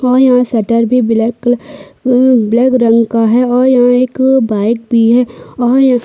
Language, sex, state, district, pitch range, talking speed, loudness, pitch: Hindi, female, Chhattisgarh, Sukma, 230-255 Hz, 160 wpm, -11 LUFS, 245 Hz